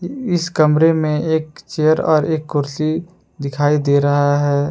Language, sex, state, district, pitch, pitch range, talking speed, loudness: Hindi, male, Jharkhand, Palamu, 155 Hz, 145-160 Hz, 155 wpm, -17 LUFS